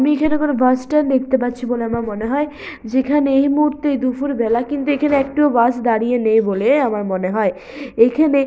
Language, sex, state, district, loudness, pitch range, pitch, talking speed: Bengali, female, West Bengal, Purulia, -17 LUFS, 235-290 Hz, 260 Hz, 175 wpm